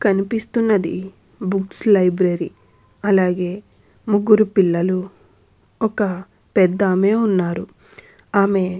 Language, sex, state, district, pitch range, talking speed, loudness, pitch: Telugu, female, Andhra Pradesh, Krishna, 180-205 Hz, 90 wpm, -19 LUFS, 190 Hz